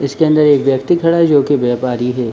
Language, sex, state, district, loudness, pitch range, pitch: Hindi, male, Jharkhand, Sahebganj, -13 LUFS, 125-155 Hz, 140 Hz